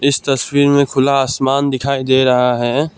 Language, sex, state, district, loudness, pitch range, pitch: Hindi, male, Assam, Kamrup Metropolitan, -14 LUFS, 130-140 Hz, 135 Hz